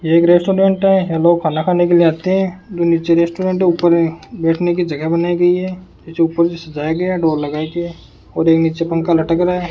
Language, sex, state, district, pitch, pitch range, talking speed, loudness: Hindi, male, Rajasthan, Bikaner, 170 Hz, 165-180 Hz, 245 wpm, -15 LUFS